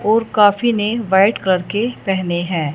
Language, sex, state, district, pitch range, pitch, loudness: Hindi, female, Punjab, Fazilka, 185-220 Hz, 205 Hz, -16 LUFS